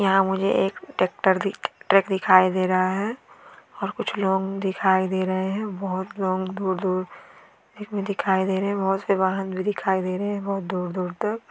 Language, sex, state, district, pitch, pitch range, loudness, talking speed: Hindi, female, Bihar, Araria, 190 Hz, 185-195 Hz, -24 LUFS, 200 wpm